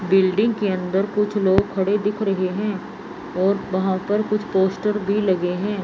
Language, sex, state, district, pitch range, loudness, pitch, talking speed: Hindi, female, Chandigarh, Chandigarh, 190-210 Hz, -21 LUFS, 195 Hz, 175 wpm